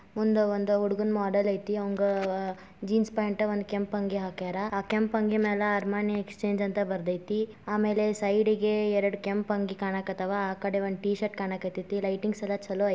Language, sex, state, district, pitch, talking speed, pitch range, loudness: Kannada, female, Karnataka, Dharwad, 205 Hz, 95 wpm, 195-210 Hz, -29 LUFS